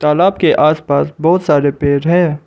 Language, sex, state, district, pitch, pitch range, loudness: Hindi, male, Arunachal Pradesh, Lower Dibang Valley, 150 Hz, 145-170 Hz, -13 LUFS